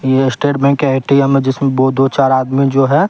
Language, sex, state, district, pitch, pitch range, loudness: Hindi, male, Bihar, West Champaran, 135 Hz, 135-140 Hz, -13 LUFS